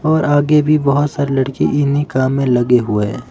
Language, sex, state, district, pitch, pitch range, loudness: Hindi, male, Himachal Pradesh, Shimla, 140 Hz, 130-145 Hz, -15 LUFS